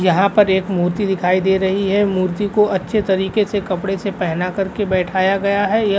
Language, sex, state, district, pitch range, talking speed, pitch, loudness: Hindi, male, Uttar Pradesh, Jalaun, 185-205 Hz, 220 wpm, 195 Hz, -17 LUFS